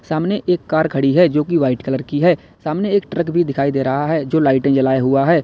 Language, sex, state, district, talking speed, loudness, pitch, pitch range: Hindi, male, Uttar Pradesh, Lalitpur, 255 wpm, -17 LUFS, 155 Hz, 135-170 Hz